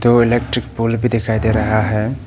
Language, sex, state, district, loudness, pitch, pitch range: Hindi, male, Arunachal Pradesh, Papum Pare, -16 LUFS, 115 Hz, 110-120 Hz